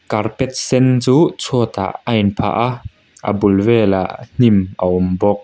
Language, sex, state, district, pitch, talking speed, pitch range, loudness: Mizo, male, Mizoram, Aizawl, 105 Hz, 155 wpm, 100-125 Hz, -16 LUFS